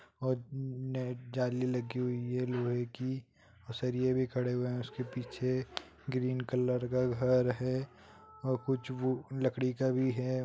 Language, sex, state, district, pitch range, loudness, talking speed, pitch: Hindi, male, Jharkhand, Jamtara, 125-130 Hz, -34 LUFS, 140 wpm, 125 Hz